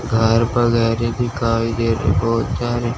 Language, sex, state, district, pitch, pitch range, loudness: Hindi, male, Chandigarh, Chandigarh, 115 Hz, 115-120 Hz, -18 LUFS